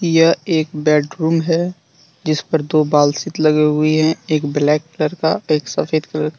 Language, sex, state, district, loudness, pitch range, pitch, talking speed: Hindi, male, Jharkhand, Deoghar, -17 LUFS, 150-165 Hz, 155 Hz, 190 wpm